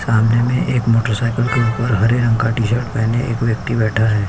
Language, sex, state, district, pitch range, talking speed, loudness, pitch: Hindi, male, Uttar Pradesh, Hamirpur, 110-120 Hz, 195 wpm, -17 LUFS, 115 Hz